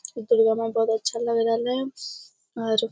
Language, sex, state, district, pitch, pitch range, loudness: Hindi, female, Bihar, Begusarai, 230 Hz, 225-235 Hz, -24 LUFS